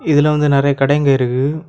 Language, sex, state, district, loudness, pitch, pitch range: Tamil, male, Tamil Nadu, Kanyakumari, -14 LUFS, 145 Hz, 135-150 Hz